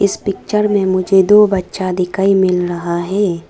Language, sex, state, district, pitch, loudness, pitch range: Hindi, female, Arunachal Pradesh, Lower Dibang Valley, 190 Hz, -14 LUFS, 180-200 Hz